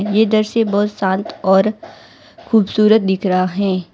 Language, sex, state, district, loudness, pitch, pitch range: Hindi, female, Gujarat, Valsad, -16 LUFS, 205 Hz, 190-220 Hz